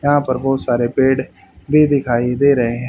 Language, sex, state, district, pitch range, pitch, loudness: Hindi, male, Haryana, Jhajjar, 125-140 Hz, 130 Hz, -16 LUFS